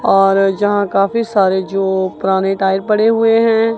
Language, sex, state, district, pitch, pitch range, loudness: Hindi, female, Punjab, Kapurthala, 195 Hz, 190-225 Hz, -14 LUFS